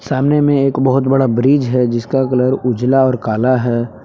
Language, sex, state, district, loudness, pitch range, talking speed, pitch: Hindi, male, Jharkhand, Palamu, -14 LUFS, 125-135 Hz, 190 wpm, 130 Hz